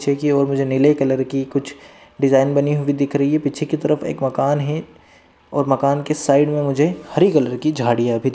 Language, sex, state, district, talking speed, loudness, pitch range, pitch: Hindi, male, Maharashtra, Dhule, 230 wpm, -18 LUFS, 135-150 Hz, 140 Hz